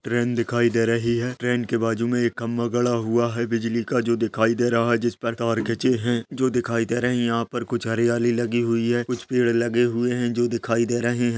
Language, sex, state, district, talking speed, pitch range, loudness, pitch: Hindi, male, Uttar Pradesh, Jyotiba Phule Nagar, 250 wpm, 115-120 Hz, -23 LUFS, 120 Hz